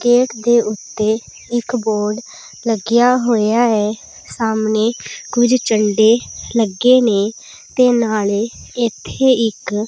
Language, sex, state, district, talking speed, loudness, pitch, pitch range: Punjabi, female, Punjab, Pathankot, 110 wpm, -16 LUFS, 225 Hz, 215-240 Hz